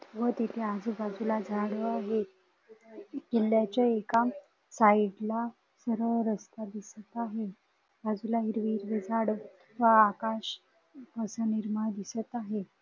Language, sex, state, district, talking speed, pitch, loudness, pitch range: Marathi, female, Maharashtra, Dhule, 105 wpm, 220 Hz, -30 LUFS, 215-230 Hz